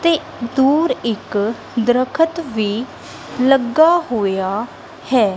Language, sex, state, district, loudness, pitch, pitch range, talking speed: Punjabi, female, Punjab, Kapurthala, -17 LUFS, 245 Hz, 220-320 Hz, 90 wpm